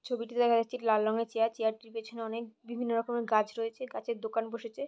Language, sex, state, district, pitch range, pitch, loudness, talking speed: Bengali, female, West Bengal, Jhargram, 225-235 Hz, 230 Hz, -32 LUFS, 210 wpm